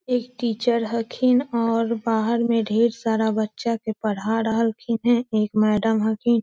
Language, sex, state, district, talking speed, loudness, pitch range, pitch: Magahi, female, Bihar, Lakhisarai, 175 wpm, -22 LUFS, 220-235 Hz, 230 Hz